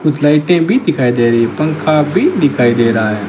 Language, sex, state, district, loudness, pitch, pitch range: Hindi, male, Rajasthan, Bikaner, -12 LUFS, 145 Hz, 120-155 Hz